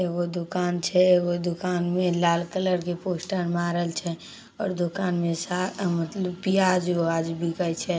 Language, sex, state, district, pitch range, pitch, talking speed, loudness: Maithili, female, Bihar, Samastipur, 170-185 Hz, 175 Hz, 160 wpm, -25 LUFS